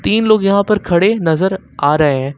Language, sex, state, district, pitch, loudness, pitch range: Hindi, male, Jharkhand, Ranchi, 190 Hz, -14 LUFS, 155-210 Hz